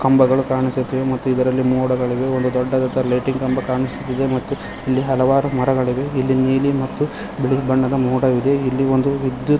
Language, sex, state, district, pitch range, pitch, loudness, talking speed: Kannada, male, Karnataka, Koppal, 130-135 Hz, 130 Hz, -18 LUFS, 150 wpm